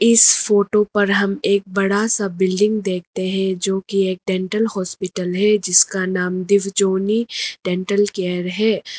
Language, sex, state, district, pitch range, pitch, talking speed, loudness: Hindi, female, Arunachal Pradesh, Lower Dibang Valley, 185-205 Hz, 195 Hz, 145 wpm, -18 LUFS